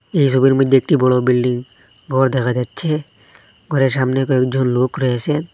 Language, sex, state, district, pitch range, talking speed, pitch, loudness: Bengali, male, Assam, Hailakandi, 125-135 Hz, 150 wpm, 130 Hz, -16 LUFS